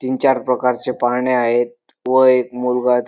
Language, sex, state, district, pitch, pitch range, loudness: Marathi, male, Maharashtra, Dhule, 125 Hz, 125-130 Hz, -17 LUFS